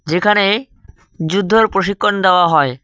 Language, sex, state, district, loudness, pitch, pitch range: Bengali, male, West Bengal, Cooch Behar, -14 LUFS, 195 Hz, 170-205 Hz